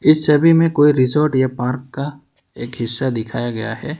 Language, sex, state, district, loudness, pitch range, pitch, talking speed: Hindi, male, Karnataka, Bangalore, -16 LUFS, 125-150 Hz, 135 Hz, 195 wpm